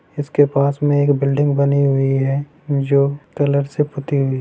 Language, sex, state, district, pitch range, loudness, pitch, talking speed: Hindi, male, Bihar, Sitamarhi, 140-145 Hz, -17 LUFS, 140 Hz, 175 wpm